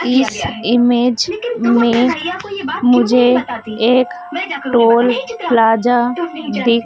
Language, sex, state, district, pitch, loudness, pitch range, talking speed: Hindi, female, Madhya Pradesh, Dhar, 245 Hz, -15 LUFS, 235-325 Hz, 80 wpm